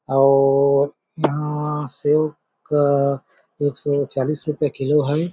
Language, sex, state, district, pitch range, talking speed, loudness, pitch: Hindi, male, Chhattisgarh, Balrampur, 140-150 Hz, 115 wpm, -20 LUFS, 145 Hz